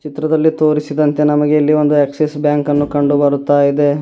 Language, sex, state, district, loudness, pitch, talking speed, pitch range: Kannada, male, Karnataka, Bidar, -14 LUFS, 150 Hz, 135 wpm, 145-150 Hz